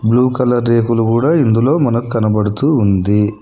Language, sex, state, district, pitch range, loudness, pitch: Telugu, male, Telangana, Hyderabad, 105-125 Hz, -14 LUFS, 115 Hz